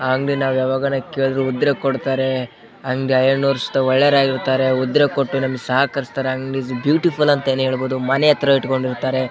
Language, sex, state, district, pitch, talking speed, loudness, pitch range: Kannada, male, Karnataka, Bellary, 135 Hz, 150 wpm, -18 LUFS, 130-140 Hz